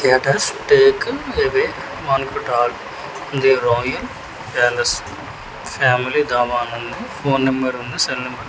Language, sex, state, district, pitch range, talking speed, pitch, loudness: Telugu, male, Telangana, Hyderabad, 120-145 Hz, 120 wpm, 130 Hz, -18 LUFS